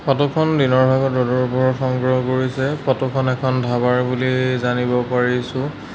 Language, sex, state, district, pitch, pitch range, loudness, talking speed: Assamese, male, Assam, Sonitpur, 130 Hz, 125-130 Hz, -18 LUFS, 150 wpm